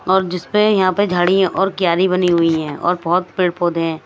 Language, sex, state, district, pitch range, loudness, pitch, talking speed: Hindi, female, Himachal Pradesh, Shimla, 170-190 Hz, -16 LUFS, 180 Hz, 235 wpm